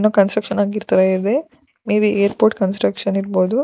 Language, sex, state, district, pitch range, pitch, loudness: Kannada, female, Karnataka, Shimoga, 195-215 Hz, 205 Hz, -17 LUFS